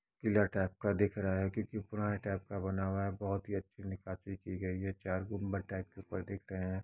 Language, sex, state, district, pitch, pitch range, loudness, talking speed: Hindi, male, Uttar Pradesh, Etah, 95 Hz, 95-100 Hz, -38 LUFS, 265 wpm